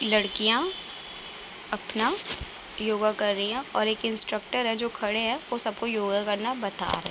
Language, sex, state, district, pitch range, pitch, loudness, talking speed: Hindi, female, Uttar Pradesh, Budaun, 210-235 Hz, 215 Hz, -25 LUFS, 175 wpm